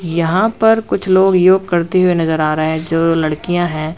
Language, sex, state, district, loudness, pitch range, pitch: Hindi, male, Uttar Pradesh, Lalitpur, -14 LUFS, 160-185 Hz, 170 Hz